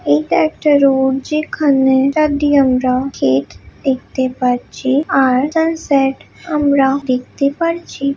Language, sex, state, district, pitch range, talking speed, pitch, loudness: Bengali, female, West Bengal, Dakshin Dinajpur, 260-295 Hz, 105 wpm, 270 Hz, -15 LUFS